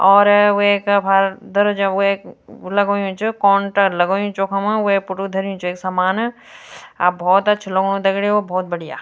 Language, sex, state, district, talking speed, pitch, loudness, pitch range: Garhwali, female, Uttarakhand, Tehri Garhwal, 160 wpm, 195 Hz, -17 LUFS, 190-205 Hz